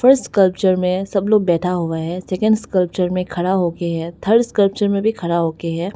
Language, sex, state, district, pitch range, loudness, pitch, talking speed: Hindi, female, Arunachal Pradesh, Lower Dibang Valley, 175-200 Hz, -18 LUFS, 185 Hz, 230 wpm